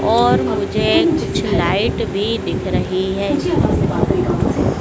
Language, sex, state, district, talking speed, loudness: Hindi, female, Madhya Pradesh, Dhar, 100 wpm, -17 LUFS